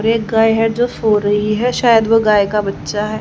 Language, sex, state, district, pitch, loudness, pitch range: Hindi, female, Haryana, Charkhi Dadri, 220 Hz, -14 LUFS, 210-225 Hz